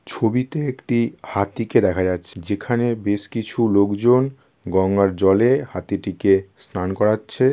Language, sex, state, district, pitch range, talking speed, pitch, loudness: Bengali, male, West Bengal, Kolkata, 95-120 Hz, 110 wpm, 105 Hz, -20 LUFS